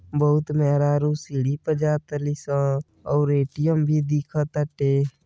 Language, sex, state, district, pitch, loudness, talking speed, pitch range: Bhojpuri, male, Uttar Pradesh, Deoria, 145 Hz, -23 LUFS, 115 wpm, 140-150 Hz